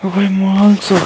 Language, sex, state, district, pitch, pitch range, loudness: Hindi, male, Rajasthan, Nagaur, 195 Hz, 190-200 Hz, -12 LUFS